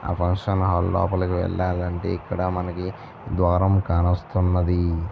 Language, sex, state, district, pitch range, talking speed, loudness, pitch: Telugu, male, Andhra Pradesh, Visakhapatnam, 90-95 Hz, 105 wpm, -23 LUFS, 90 Hz